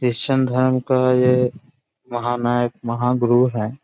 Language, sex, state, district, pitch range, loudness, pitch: Hindi, male, Bihar, Jahanabad, 120-130 Hz, -19 LUFS, 125 Hz